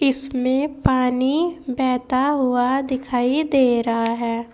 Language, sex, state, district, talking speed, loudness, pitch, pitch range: Hindi, female, Uttar Pradesh, Saharanpur, 105 wpm, -20 LUFS, 255 Hz, 245-275 Hz